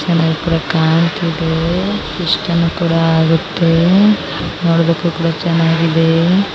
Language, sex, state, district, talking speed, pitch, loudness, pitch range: Kannada, female, Karnataka, Bijapur, 75 wpm, 165 Hz, -14 LUFS, 165-170 Hz